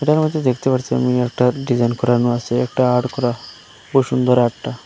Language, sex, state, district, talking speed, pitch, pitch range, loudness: Bengali, male, Assam, Hailakandi, 175 wpm, 125 Hz, 120-130 Hz, -18 LUFS